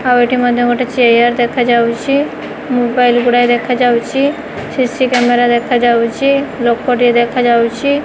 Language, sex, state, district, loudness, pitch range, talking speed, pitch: Odia, female, Odisha, Khordha, -12 LUFS, 240-255 Hz, 105 wpm, 245 Hz